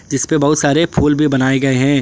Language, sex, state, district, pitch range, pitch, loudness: Hindi, male, Jharkhand, Garhwa, 135-150 Hz, 145 Hz, -14 LUFS